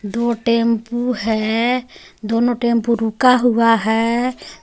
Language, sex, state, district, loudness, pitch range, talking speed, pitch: Hindi, female, Jharkhand, Garhwa, -17 LUFS, 225-240 Hz, 115 wpm, 230 Hz